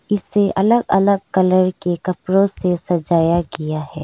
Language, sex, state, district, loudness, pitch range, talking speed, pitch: Hindi, female, Arunachal Pradesh, Lower Dibang Valley, -17 LUFS, 170-195 Hz, 150 wpm, 185 Hz